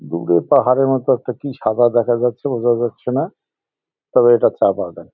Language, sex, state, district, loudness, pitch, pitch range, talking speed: Bengali, male, West Bengal, Jalpaiguri, -17 LUFS, 125 Hz, 120-135 Hz, 175 wpm